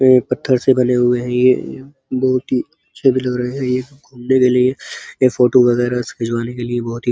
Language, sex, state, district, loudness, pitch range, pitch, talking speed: Hindi, male, Uttar Pradesh, Muzaffarnagar, -16 LUFS, 125-130 Hz, 125 Hz, 235 wpm